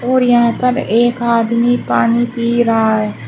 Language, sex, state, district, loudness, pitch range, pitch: Hindi, female, Uttar Pradesh, Shamli, -14 LUFS, 230-240 Hz, 235 Hz